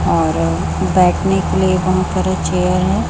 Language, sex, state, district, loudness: Hindi, female, Chhattisgarh, Raipur, -16 LUFS